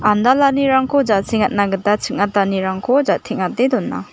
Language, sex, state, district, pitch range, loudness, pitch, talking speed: Garo, female, Meghalaya, West Garo Hills, 200-265 Hz, -17 LUFS, 215 Hz, 85 wpm